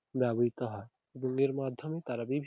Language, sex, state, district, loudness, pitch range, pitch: Bengali, male, West Bengal, Dakshin Dinajpur, -34 LUFS, 120-135 Hz, 130 Hz